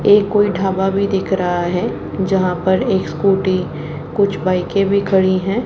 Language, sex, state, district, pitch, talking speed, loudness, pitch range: Hindi, male, Haryana, Jhajjar, 190 Hz, 170 wpm, -17 LUFS, 180-200 Hz